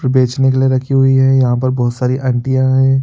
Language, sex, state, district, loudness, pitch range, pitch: Sadri, male, Chhattisgarh, Jashpur, -13 LUFS, 130-135 Hz, 130 Hz